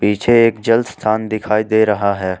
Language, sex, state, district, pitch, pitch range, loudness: Hindi, male, Jharkhand, Ranchi, 110 Hz, 105-115 Hz, -15 LUFS